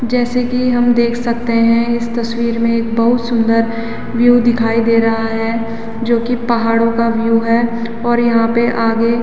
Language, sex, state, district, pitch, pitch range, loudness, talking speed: Hindi, female, Uttarakhand, Tehri Garhwal, 230 Hz, 230-235 Hz, -14 LUFS, 180 wpm